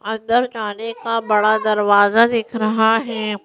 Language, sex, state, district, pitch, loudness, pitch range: Hindi, female, Madhya Pradesh, Bhopal, 220 Hz, -17 LUFS, 210-230 Hz